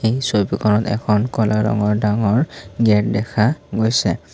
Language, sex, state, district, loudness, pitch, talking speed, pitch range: Assamese, male, Assam, Kamrup Metropolitan, -18 LUFS, 105 Hz, 110 wpm, 105-115 Hz